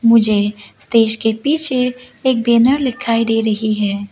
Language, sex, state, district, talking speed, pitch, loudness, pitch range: Hindi, female, Arunachal Pradesh, Lower Dibang Valley, 145 wpm, 230 Hz, -15 LUFS, 215-250 Hz